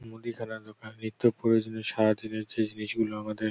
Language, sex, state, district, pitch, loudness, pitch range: Bengali, male, West Bengal, North 24 Parganas, 110 Hz, -30 LUFS, 110-115 Hz